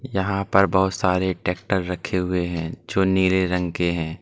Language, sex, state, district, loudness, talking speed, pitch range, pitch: Hindi, male, Uttar Pradesh, Lalitpur, -22 LUFS, 185 wpm, 90-95 Hz, 95 Hz